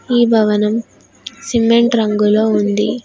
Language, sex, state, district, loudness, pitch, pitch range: Telugu, female, Telangana, Hyderabad, -14 LUFS, 225 Hz, 210-235 Hz